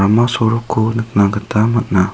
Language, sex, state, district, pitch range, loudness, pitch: Garo, male, Meghalaya, South Garo Hills, 100-115 Hz, -15 LUFS, 110 Hz